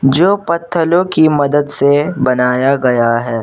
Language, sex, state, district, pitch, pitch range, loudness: Hindi, male, Jharkhand, Garhwa, 145 Hz, 125-165 Hz, -13 LUFS